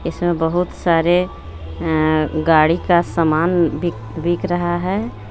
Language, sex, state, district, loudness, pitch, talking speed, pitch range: Hindi, female, Jharkhand, Garhwa, -18 LUFS, 165 Hz, 100 wpm, 155-175 Hz